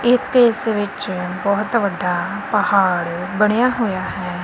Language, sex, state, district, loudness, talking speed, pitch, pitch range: Punjabi, female, Punjab, Kapurthala, -18 LUFS, 120 wpm, 200 Hz, 180-225 Hz